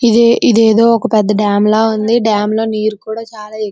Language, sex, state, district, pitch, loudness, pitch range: Telugu, female, Andhra Pradesh, Srikakulam, 220 Hz, -12 LUFS, 215-230 Hz